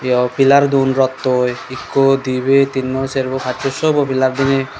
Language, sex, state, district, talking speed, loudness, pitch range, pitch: Chakma, male, Tripura, Dhalai, 165 wpm, -15 LUFS, 130-135 Hz, 135 Hz